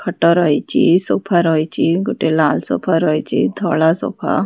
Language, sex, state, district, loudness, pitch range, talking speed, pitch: Odia, female, Odisha, Khordha, -16 LUFS, 160-175 Hz, 150 wpm, 170 Hz